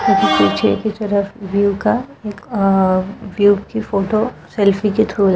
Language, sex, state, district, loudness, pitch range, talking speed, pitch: Hindi, female, Uttar Pradesh, Budaun, -16 LUFS, 195-215 Hz, 155 wpm, 200 Hz